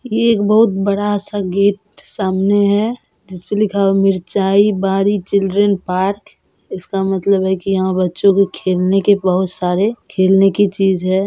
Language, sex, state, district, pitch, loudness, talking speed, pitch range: Hindi, female, Bihar, Purnia, 195 Hz, -15 LUFS, 170 wpm, 190-205 Hz